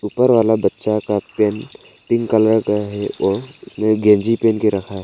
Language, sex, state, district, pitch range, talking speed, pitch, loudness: Hindi, male, Arunachal Pradesh, Papum Pare, 105-110 Hz, 190 wpm, 105 Hz, -17 LUFS